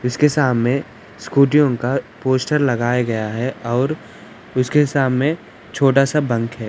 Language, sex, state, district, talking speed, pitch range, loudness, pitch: Hindi, male, Andhra Pradesh, Anantapur, 70 wpm, 120-145 Hz, -18 LUFS, 130 Hz